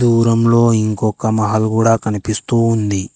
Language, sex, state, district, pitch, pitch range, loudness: Telugu, male, Telangana, Hyderabad, 110 Hz, 110-115 Hz, -15 LUFS